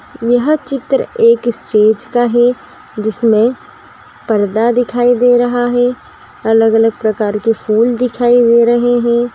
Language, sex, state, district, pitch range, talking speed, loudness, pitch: Magahi, female, Bihar, Gaya, 225-245 Hz, 145 wpm, -12 LUFS, 240 Hz